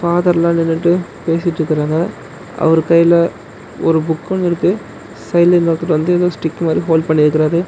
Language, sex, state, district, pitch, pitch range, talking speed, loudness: Tamil, male, Tamil Nadu, Namakkal, 165 Hz, 160-175 Hz, 135 wpm, -15 LUFS